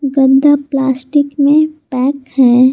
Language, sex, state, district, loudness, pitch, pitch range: Hindi, female, Jharkhand, Garhwa, -12 LUFS, 275 Hz, 265-290 Hz